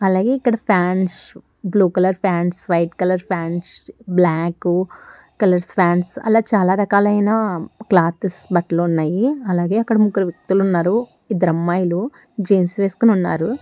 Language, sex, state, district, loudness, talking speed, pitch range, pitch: Telugu, female, Telangana, Hyderabad, -18 LUFS, 125 wpm, 175-210 Hz, 185 Hz